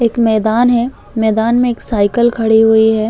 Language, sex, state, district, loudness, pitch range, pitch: Hindi, female, Chhattisgarh, Bastar, -13 LUFS, 220-235 Hz, 225 Hz